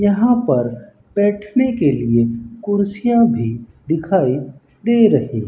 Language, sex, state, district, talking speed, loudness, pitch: Hindi, male, Rajasthan, Bikaner, 110 wpm, -17 LUFS, 160 Hz